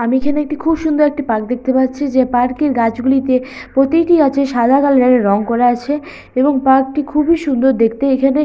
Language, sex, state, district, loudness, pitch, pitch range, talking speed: Bengali, female, West Bengal, Purulia, -14 LUFS, 265 Hz, 250-290 Hz, 205 wpm